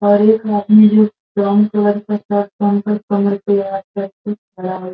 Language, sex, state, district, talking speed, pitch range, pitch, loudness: Hindi, female, Uttar Pradesh, Gorakhpur, 60 wpm, 200-210 Hz, 205 Hz, -15 LUFS